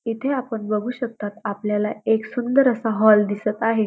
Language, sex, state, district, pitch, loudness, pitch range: Marathi, female, Maharashtra, Dhule, 220 Hz, -21 LUFS, 210-245 Hz